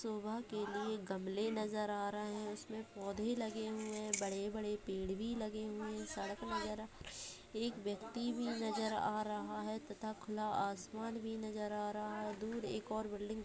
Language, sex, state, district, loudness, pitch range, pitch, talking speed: Hindi, female, Bihar, Saharsa, -42 LUFS, 210-220 Hz, 215 Hz, 195 wpm